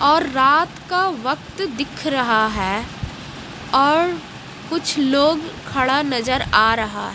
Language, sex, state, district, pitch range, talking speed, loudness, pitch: Hindi, female, Odisha, Malkangiri, 255-320 Hz, 115 wpm, -19 LUFS, 275 Hz